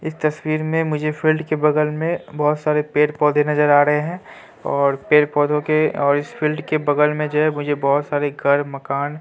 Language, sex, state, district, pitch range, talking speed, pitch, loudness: Hindi, male, Bihar, Katihar, 145-155 Hz, 210 wpm, 150 Hz, -19 LUFS